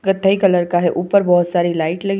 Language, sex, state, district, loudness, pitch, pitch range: Hindi, female, Uttar Pradesh, Etah, -16 LUFS, 180 Hz, 175-195 Hz